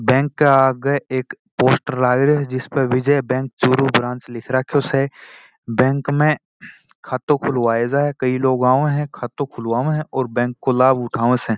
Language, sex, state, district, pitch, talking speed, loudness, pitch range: Marwari, male, Rajasthan, Churu, 130 Hz, 175 wpm, -18 LUFS, 125-140 Hz